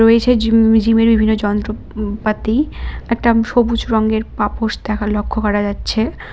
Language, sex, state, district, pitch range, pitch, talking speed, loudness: Bengali, female, West Bengal, Cooch Behar, 215-230 Hz, 220 Hz, 125 wpm, -16 LUFS